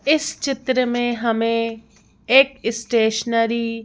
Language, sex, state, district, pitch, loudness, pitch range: Hindi, female, Madhya Pradesh, Bhopal, 230 Hz, -19 LUFS, 230-255 Hz